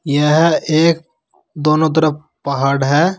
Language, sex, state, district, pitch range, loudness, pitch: Hindi, male, Uttar Pradesh, Saharanpur, 145-160 Hz, -15 LUFS, 155 Hz